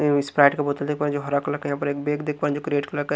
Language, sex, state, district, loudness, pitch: Hindi, male, Haryana, Rohtak, -23 LUFS, 145 Hz